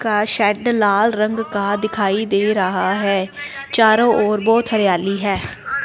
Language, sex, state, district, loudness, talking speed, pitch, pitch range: Hindi, female, Punjab, Fazilka, -17 LUFS, 145 wpm, 210 Hz, 200-225 Hz